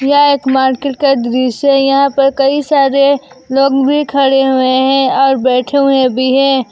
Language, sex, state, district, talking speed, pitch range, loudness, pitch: Hindi, female, Jharkhand, Garhwa, 180 wpm, 260-275 Hz, -11 LUFS, 270 Hz